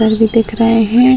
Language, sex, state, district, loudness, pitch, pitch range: Hindi, female, Bihar, Muzaffarpur, -12 LUFS, 230 Hz, 220-230 Hz